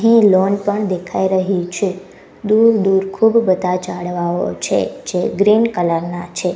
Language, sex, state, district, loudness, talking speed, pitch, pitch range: Gujarati, female, Gujarat, Gandhinagar, -16 LUFS, 165 wpm, 190 Hz, 180-205 Hz